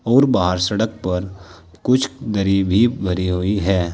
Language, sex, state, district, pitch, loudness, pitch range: Hindi, male, Uttar Pradesh, Saharanpur, 95 Hz, -19 LUFS, 90-115 Hz